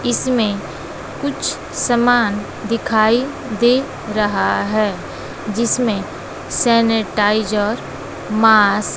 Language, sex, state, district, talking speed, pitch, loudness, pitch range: Hindi, female, Bihar, West Champaran, 75 wpm, 220 Hz, -17 LUFS, 210-240 Hz